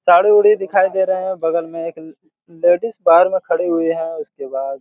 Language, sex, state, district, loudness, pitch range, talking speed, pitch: Hindi, male, Chhattisgarh, Raigarh, -16 LUFS, 165-190 Hz, 185 wpm, 170 Hz